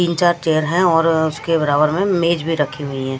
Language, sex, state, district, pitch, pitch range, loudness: Hindi, female, Maharashtra, Washim, 165 Hz, 150-170 Hz, -17 LUFS